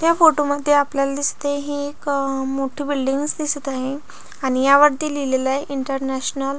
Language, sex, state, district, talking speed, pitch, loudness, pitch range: Marathi, female, Maharashtra, Pune, 155 wpm, 280 Hz, -20 LUFS, 270-290 Hz